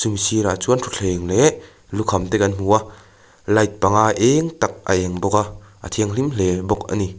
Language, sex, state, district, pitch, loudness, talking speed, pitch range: Mizo, male, Mizoram, Aizawl, 105 Hz, -19 LUFS, 190 wpm, 95-110 Hz